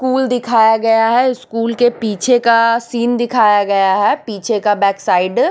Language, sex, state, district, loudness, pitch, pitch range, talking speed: Hindi, female, Chhattisgarh, Raipur, -14 LUFS, 230 Hz, 210-240 Hz, 185 wpm